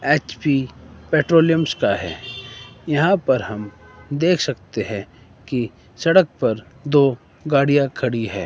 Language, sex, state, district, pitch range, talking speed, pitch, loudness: Hindi, male, Himachal Pradesh, Shimla, 110-145 Hz, 120 wpm, 130 Hz, -19 LUFS